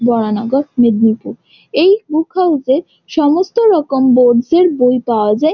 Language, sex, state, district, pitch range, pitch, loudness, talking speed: Bengali, female, West Bengal, Jhargram, 240-335 Hz, 270 Hz, -13 LUFS, 150 wpm